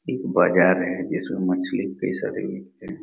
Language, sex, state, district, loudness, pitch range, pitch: Hindi, male, Chhattisgarh, Raigarh, -23 LUFS, 65-90 Hz, 90 Hz